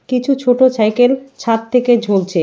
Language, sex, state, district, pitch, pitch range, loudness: Bengali, female, West Bengal, Alipurduar, 245 Hz, 220-255 Hz, -14 LUFS